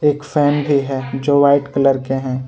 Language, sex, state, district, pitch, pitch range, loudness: Hindi, male, Jharkhand, Ranchi, 140 Hz, 135-145 Hz, -16 LUFS